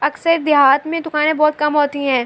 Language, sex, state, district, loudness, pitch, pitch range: Urdu, female, Andhra Pradesh, Anantapur, -15 LUFS, 300 Hz, 285-310 Hz